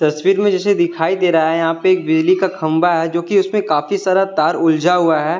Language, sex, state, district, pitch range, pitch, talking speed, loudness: Hindi, male, Delhi, New Delhi, 160-200 Hz, 175 Hz, 245 wpm, -15 LUFS